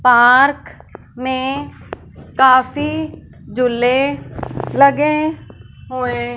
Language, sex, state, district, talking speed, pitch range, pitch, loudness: Hindi, female, Punjab, Fazilka, 55 wpm, 250-285 Hz, 260 Hz, -15 LUFS